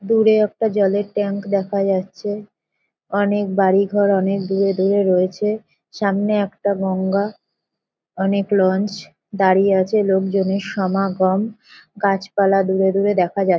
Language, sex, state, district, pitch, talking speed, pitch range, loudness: Bengali, female, West Bengal, North 24 Parganas, 195 Hz, 125 wpm, 190-205 Hz, -19 LUFS